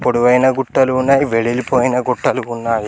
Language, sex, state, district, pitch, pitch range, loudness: Telugu, male, Telangana, Mahabubabad, 125 Hz, 120-130 Hz, -15 LUFS